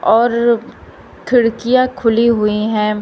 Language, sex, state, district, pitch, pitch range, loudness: Hindi, female, Uttar Pradesh, Shamli, 235 Hz, 220-240 Hz, -14 LUFS